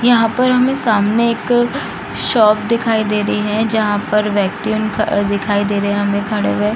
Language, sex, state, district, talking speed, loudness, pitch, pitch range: Hindi, female, Bihar, East Champaran, 180 wpm, -15 LUFS, 215 Hz, 205-230 Hz